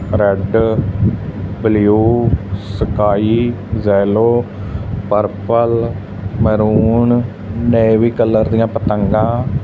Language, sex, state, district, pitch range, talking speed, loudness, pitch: Punjabi, male, Punjab, Fazilka, 100-115 Hz, 60 wpm, -15 LUFS, 110 Hz